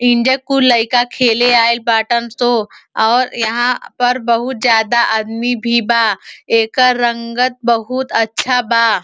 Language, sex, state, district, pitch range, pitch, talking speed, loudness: Bhojpuri, female, Uttar Pradesh, Ghazipur, 230-245 Hz, 235 Hz, 135 wpm, -14 LUFS